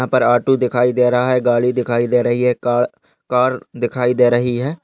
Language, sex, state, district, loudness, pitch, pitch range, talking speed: Hindi, male, Maharashtra, Pune, -16 LUFS, 125 Hz, 120-125 Hz, 220 wpm